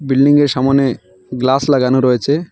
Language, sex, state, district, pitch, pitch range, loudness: Bengali, male, Assam, Hailakandi, 135 Hz, 125-140 Hz, -14 LUFS